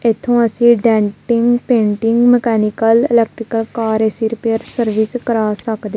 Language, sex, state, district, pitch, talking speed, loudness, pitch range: Punjabi, female, Punjab, Kapurthala, 225 Hz, 120 wpm, -15 LUFS, 220-235 Hz